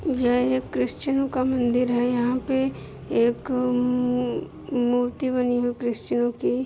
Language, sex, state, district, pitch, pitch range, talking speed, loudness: Hindi, female, Jharkhand, Jamtara, 245 Hz, 240-255 Hz, 145 wpm, -24 LUFS